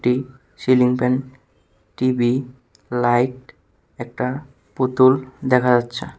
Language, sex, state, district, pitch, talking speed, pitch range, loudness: Bengali, male, Tripura, West Tripura, 125 Hz, 85 wpm, 120-130 Hz, -19 LUFS